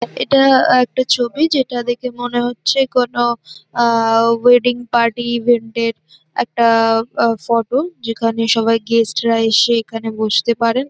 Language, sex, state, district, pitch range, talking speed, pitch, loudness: Bengali, female, West Bengal, North 24 Parganas, 230-245 Hz, 125 wpm, 235 Hz, -15 LUFS